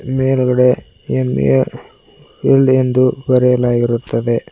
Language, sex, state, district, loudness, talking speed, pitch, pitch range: Kannada, male, Karnataka, Koppal, -14 LUFS, 65 wpm, 125 Hz, 115-130 Hz